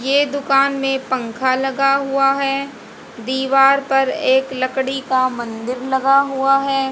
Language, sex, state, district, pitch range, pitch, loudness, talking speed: Hindi, female, Haryana, Jhajjar, 260-275 Hz, 270 Hz, -17 LUFS, 140 wpm